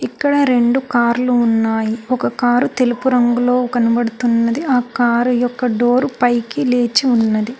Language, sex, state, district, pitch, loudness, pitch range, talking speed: Telugu, female, Telangana, Hyderabad, 245 Hz, -16 LUFS, 235-250 Hz, 125 wpm